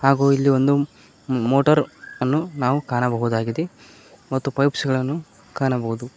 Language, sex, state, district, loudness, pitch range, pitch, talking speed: Kannada, male, Karnataka, Koppal, -21 LUFS, 125-140 Hz, 135 Hz, 115 wpm